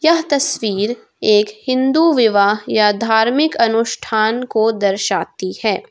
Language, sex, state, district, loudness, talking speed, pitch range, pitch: Hindi, female, Jharkhand, Ranchi, -16 LUFS, 110 wpm, 210-255 Hz, 225 Hz